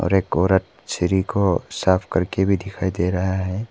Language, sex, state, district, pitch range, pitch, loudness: Hindi, male, Arunachal Pradesh, Papum Pare, 90-95 Hz, 95 Hz, -21 LUFS